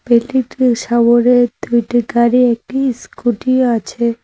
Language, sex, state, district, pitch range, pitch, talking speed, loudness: Bengali, female, West Bengal, Cooch Behar, 235-250 Hz, 240 Hz, 85 wpm, -14 LUFS